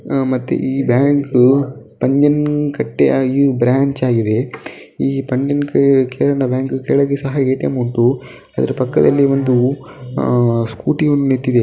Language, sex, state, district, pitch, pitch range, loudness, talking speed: Kannada, male, Karnataka, Dakshina Kannada, 135 Hz, 125-140 Hz, -15 LUFS, 105 wpm